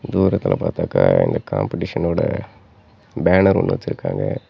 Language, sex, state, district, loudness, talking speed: Tamil, male, Tamil Nadu, Namakkal, -19 LUFS, 105 wpm